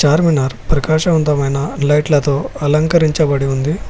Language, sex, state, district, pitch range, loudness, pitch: Telugu, male, Telangana, Hyderabad, 140-155 Hz, -15 LUFS, 150 Hz